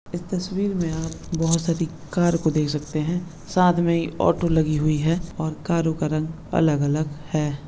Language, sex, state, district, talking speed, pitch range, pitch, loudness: Hindi, male, West Bengal, Kolkata, 180 wpm, 155-170 Hz, 160 Hz, -23 LUFS